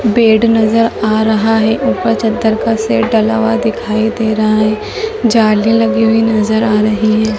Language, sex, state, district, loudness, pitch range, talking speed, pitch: Hindi, female, Madhya Pradesh, Dhar, -12 LUFS, 215-225 Hz, 180 wpm, 220 Hz